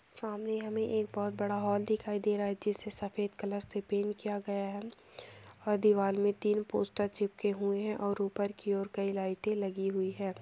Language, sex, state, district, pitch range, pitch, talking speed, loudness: Hindi, female, Bihar, Begusarai, 200-210 Hz, 205 Hz, 200 wpm, -34 LUFS